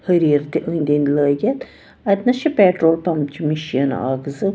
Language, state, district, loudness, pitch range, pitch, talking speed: Kashmiri, Punjab, Kapurthala, -18 LUFS, 145-180 Hz, 160 Hz, 130 wpm